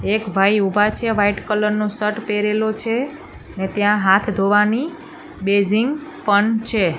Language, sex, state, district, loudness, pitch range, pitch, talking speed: Gujarati, female, Gujarat, Gandhinagar, -18 LUFS, 205-225 Hz, 210 Hz, 145 wpm